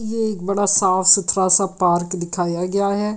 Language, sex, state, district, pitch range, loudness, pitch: Hindi, female, Delhi, New Delhi, 180-205 Hz, -17 LUFS, 195 Hz